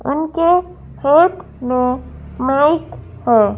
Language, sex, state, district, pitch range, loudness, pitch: Hindi, female, Madhya Pradesh, Bhopal, 250-335 Hz, -16 LUFS, 285 Hz